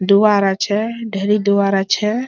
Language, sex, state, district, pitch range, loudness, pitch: Bengali, male, West Bengal, Malda, 195-210 Hz, -16 LUFS, 205 Hz